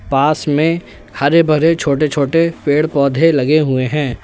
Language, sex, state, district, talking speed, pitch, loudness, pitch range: Hindi, male, Uttar Pradesh, Lalitpur, 155 wpm, 150 Hz, -14 LUFS, 140-160 Hz